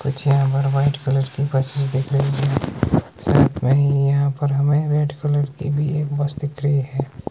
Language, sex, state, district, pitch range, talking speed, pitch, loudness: Hindi, male, Himachal Pradesh, Shimla, 135-145 Hz, 205 wpm, 140 Hz, -20 LUFS